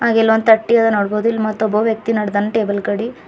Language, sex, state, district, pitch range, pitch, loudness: Kannada, female, Karnataka, Bidar, 210-225 Hz, 220 Hz, -16 LUFS